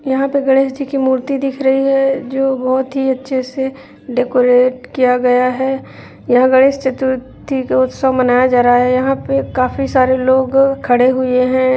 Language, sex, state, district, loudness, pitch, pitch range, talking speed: Hindi, female, Bihar, Jahanabad, -14 LUFS, 260 Hz, 255-270 Hz, 175 wpm